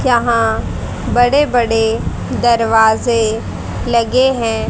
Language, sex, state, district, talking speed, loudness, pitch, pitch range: Hindi, female, Haryana, Charkhi Dadri, 75 wpm, -14 LUFS, 235 Hz, 225-245 Hz